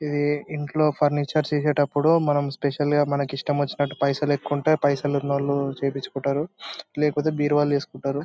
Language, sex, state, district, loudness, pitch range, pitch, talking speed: Telugu, male, Andhra Pradesh, Anantapur, -23 LUFS, 140-150 Hz, 145 Hz, 130 wpm